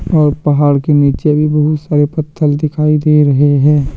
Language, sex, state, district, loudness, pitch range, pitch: Hindi, male, Jharkhand, Deoghar, -12 LUFS, 145-150 Hz, 150 Hz